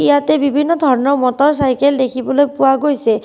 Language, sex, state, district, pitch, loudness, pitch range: Assamese, female, Assam, Kamrup Metropolitan, 270 Hz, -14 LUFS, 255-285 Hz